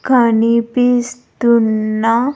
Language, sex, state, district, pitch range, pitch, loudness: Telugu, female, Andhra Pradesh, Sri Satya Sai, 225-245 Hz, 235 Hz, -14 LUFS